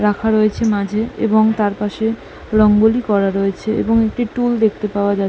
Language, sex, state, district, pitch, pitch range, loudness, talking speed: Bengali, female, West Bengal, Malda, 215 Hz, 205-225 Hz, -16 LUFS, 170 wpm